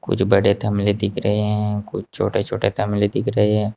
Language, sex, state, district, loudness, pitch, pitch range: Hindi, male, Uttar Pradesh, Saharanpur, -20 LUFS, 105 Hz, 100-105 Hz